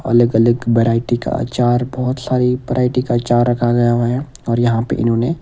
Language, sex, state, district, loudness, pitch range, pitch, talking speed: Hindi, male, Himachal Pradesh, Shimla, -16 LUFS, 120-125 Hz, 120 Hz, 200 wpm